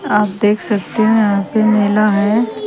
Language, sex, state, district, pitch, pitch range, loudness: Hindi, female, Haryana, Rohtak, 210 Hz, 205-220 Hz, -14 LUFS